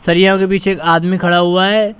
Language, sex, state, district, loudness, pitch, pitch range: Hindi, male, Uttar Pradesh, Shamli, -12 LUFS, 190 Hz, 175-195 Hz